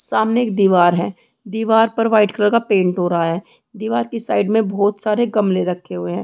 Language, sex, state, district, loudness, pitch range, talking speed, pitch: Hindi, female, Chhattisgarh, Rajnandgaon, -17 LUFS, 180-225 Hz, 220 wpm, 205 Hz